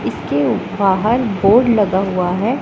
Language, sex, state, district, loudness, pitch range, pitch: Hindi, female, Punjab, Pathankot, -15 LUFS, 190-230 Hz, 200 Hz